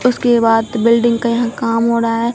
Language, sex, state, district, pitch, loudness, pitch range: Hindi, female, Bihar, Katihar, 235 Hz, -14 LUFS, 230-235 Hz